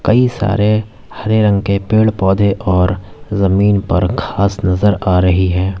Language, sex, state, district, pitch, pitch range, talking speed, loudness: Hindi, male, Uttar Pradesh, Lalitpur, 100 Hz, 95-105 Hz, 155 wpm, -14 LUFS